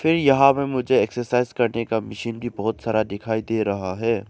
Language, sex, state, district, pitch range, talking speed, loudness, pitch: Hindi, male, Arunachal Pradesh, Lower Dibang Valley, 110-125 Hz, 210 wpm, -22 LUFS, 115 Hz